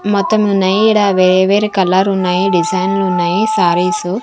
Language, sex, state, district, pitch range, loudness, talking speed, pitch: Telugu, female, Andhra Pradesh, Manyam, 180-210 Hz, -13 LUFS, 140 wpm, 190 Hz